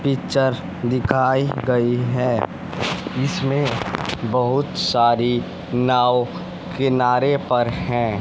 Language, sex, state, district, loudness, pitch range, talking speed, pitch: Hindi, male, Haryana, Rohtak, -20 LUFS, 120-135 Hz, 80 wpm, 125 Hz